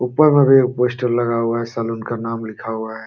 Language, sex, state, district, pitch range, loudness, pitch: Hindi, male, Uttar Pradesh, Jalaun, 115-125 Hz, -18 LUFS, 115 Hz